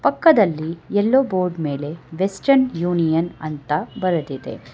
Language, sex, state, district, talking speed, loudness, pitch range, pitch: Kannada, female, Karnataka, Bangalore, 100 wpm, -20 LUFS, 155-200 Hz, 170 Hz